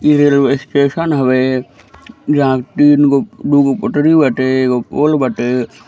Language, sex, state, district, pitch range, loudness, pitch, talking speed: Bhojpuri, male, Uttar Pradesh, Gorakhpur, 130-145 Hz, -13 LUFS, 140 Hz, 155 wpm